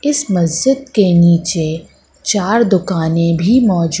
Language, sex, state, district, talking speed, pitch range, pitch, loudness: Hindi, female, Madhya Pradesh, Katni, 135 wpm, 170-235 Hz, 190 Hz, -13 LUFS